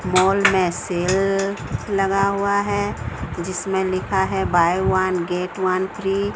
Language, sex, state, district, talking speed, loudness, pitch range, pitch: Hindi, female, Odisha, Sambalpur, 140 wpm, -20 LUFS, 180-195 Hz, 190 Hz